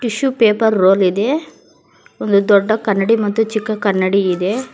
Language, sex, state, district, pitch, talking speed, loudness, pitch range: Kannada, female, Karnataka, Bangalore, 210 Hz, 140 wpm, -15 LUFS, 195-225 Hz